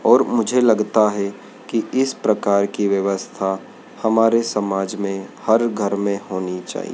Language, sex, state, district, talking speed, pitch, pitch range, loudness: Hindi, male, Madhya Pradesh, Dhar, 145 wpm, 100 Hz, 100-115 Hz, -20 LUFS